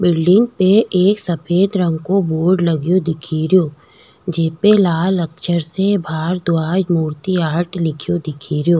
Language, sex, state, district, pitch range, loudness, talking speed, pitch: Rajasthani, female, Rajasthan, Nagaur, 160-185 Hz, -16 LUFS, 125 wpm, 175 Hz